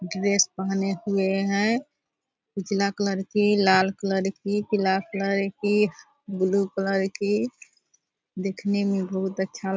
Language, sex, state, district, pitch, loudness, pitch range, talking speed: Hindi, female, Bihar, Purnia, 195 Hz, -25 LUFS, 190-205 Hz, 130 wpm